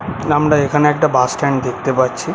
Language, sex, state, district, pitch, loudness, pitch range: Bengali, male, West Bengal, Kolkata, 140 Hz, -15 LUFS, 130-150 Hz